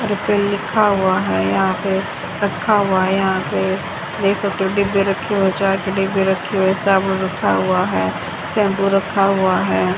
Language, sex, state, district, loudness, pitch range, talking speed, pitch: Hindi, female, Haryana, Jhajjar, -18 LUFS, 190-200 Hz, 175 wpm, 195 Hz